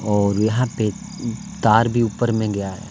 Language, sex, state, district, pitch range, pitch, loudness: Hindi, male, Jharkhand, Deoghar, 105-120 Hz, 110 Hz, -20 LUFS